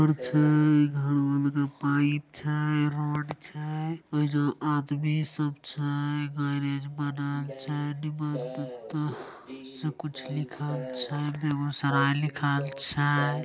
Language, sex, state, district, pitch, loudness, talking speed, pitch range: Angika, female, Bihar, Begusarai, 145 Hz, -28 LUFS, 125 wpm, 140-150 Hz